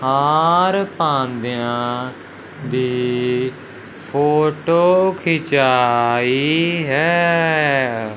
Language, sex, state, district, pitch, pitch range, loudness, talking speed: Hindi, male, Punjab, Fazilka, 135 Hz, 125-165 Hz, -17 LUFS, 45 wpm